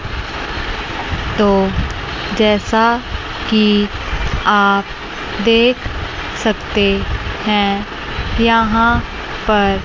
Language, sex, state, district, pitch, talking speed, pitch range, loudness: Hindi, female, Chandigarh, Chandigarh, 210 Hz, 55 wpm, 200-225 Hz, -16 LUFS